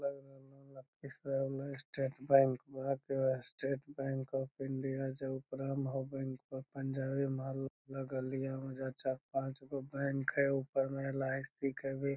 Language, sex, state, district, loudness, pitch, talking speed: Magahi, male, Bihar, Lakhisarai, -38 LUFS, 135 Hz, 150 wpm